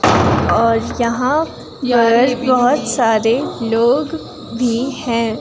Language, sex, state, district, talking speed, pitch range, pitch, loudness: Hindi, female, Himachal Pradesh, Shimla, 90 wpm, 230-255 Hz, 240 Hz, -16 LUFS